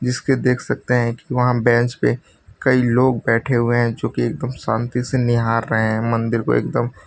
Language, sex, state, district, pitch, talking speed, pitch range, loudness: Hindi, male, Gujarat, Valsad, 120 Hz, 210 wpm, 115-125 Hz, -19 LUFS